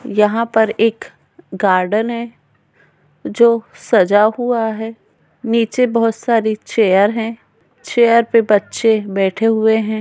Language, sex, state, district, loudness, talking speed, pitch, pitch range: Hindi, female, Bihar, Bhagalpur, -15 LUFS, 120 wpm, 225 Hz, 215-230 Hz